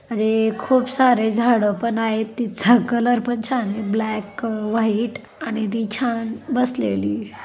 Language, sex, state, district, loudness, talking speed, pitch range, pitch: Marathi, female, Maharashtra, Dhule, -20 LUFS, 135 wpm, 215-240 Hz, 225 Hz